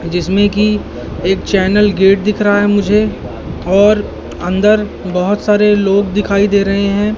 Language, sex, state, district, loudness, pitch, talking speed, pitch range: Hindi, male, Madhya Pradesh, Katni, -13 LUFS, 205 Hz, 150 wpm, 195-210 Hz